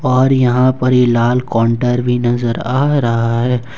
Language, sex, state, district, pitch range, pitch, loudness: Hindi, male, Jharkhand, Ranchi, 120-130 Hz, 125 Hz, -14 LUFS